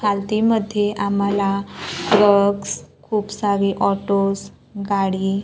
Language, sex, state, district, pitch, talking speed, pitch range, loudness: Marathi, female, Maharashtra, Gondia, 200 Hz, 90 wpm, 200-205 Hz, -20 LUFS